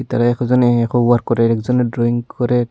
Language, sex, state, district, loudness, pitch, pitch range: Bengali, female, Tripura, Unakoti, -16 LUFS, 120 Hz, 120-125 Hz